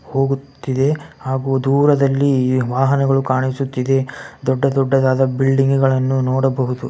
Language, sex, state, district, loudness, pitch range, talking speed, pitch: Kannada, male, Karnataka, Bellary, -17 LUFS, 130-135 Hz, 85 wpm, 135 Hz